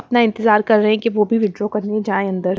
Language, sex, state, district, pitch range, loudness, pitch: Hindi, female, Punjab, Pathankot, 210-220 Hz, -17 LUFS, 215 Hz